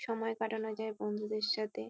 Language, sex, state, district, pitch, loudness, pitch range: Bengali, female, West Bengal, Kolkata, 215 Hz, -36 LUFS, 210-225 Hz